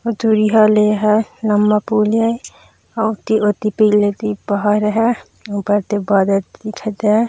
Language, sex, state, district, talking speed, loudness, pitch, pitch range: Chhattisgarhi, female, Chhattisgarh, Raigarh, 155 wpm, -16 LUFS, 215 Hz, 210-220 Hz